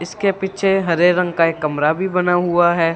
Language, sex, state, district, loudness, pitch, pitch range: Hindi, female, Punjab, Fazilka, -17 LUFS, 175 Hz, 165-190 Hz